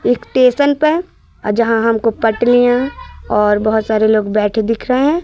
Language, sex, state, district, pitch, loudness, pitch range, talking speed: Hindi, female, Madhya Pradesh, Katni, 230 Hz, -14 LUFS, 220-260 Hz, 170 wpm